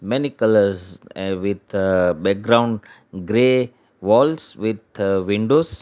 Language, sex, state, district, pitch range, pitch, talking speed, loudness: English, male, Gujarat, Valsad, 95-120 Hz, 105 Hz, 80 wpm, -19 LUFS